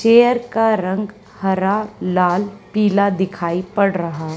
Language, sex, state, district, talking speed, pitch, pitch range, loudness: Hindi, female, Haryana, Charkhi Dadri, 125 wpm, 200 Hz, 185-210 Hz, -18 LUFS